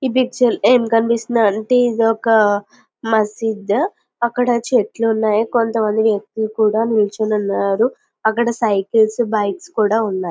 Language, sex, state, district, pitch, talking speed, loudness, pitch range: Telugu, female, Andhra Pradesh, Visakhapatnam, 225 Hz, 140 wpm, -17 LUFS, 210-235 Hz